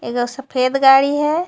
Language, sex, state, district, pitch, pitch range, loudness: Hindi, female, Jharkhand, Ranchi, 270 Hz, 255-285 Hz, -15 LUFS